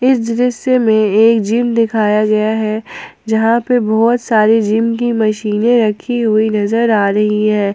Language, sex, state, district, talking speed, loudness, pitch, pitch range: Hindi, female, Jharkhand, Ranchi, 165 wpm, -13 LUFS, 220 Hz, 215-235 Hz